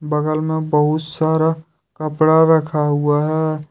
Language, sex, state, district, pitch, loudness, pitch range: Hindi, male, Jharkhand, Deoghar, 155 Hz, -17 LUFS, 150-160 Hz